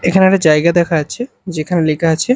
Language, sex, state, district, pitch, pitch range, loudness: Bengali, male, Odisha, Malkangiri, 170 Hz, 160-190 Hz, -14 LUFS